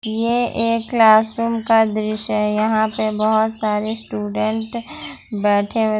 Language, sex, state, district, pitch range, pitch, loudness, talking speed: Hindi, female, Jharkhand, Ranchi, 215-225 Hz, 220 Hz, -18 LUFS, 140 wpm